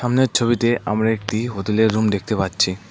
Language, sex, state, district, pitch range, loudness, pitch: Bengali, male, West Bengal, Cooch Behar, 100-120 Hz, -19 LUFS, 110 Hz